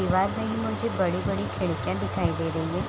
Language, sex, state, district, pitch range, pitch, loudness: Hindi, female, Bihar, Sitamarhi, 90-110 Hz, 95 Hz, -27 LUFS